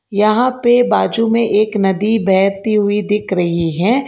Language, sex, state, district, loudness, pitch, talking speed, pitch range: Hindi, female, Karnataka, Bangalore, -14 LUFS, 210 Hz, 160 wpm, 195-225 Hz